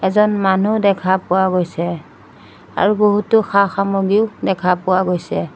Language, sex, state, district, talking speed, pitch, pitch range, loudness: Assamese, female, Assam, Sonitpur, 120 wpm, 190 Hz, 180-205 Hz, -16 LUFS